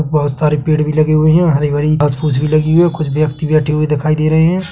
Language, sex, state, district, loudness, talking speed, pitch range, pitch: Hindi, male, Chhattisgarh, Bilaspur, -13 LUFS, 290 wpm, 150-155 Hz, 155 Hz